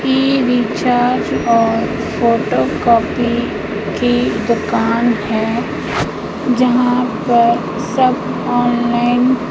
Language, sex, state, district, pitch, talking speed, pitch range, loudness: Hindi, female, Madhya Pradesh, Umaria, 240 Hz, 75 wpm, 230-245 Hz, -15 LUFS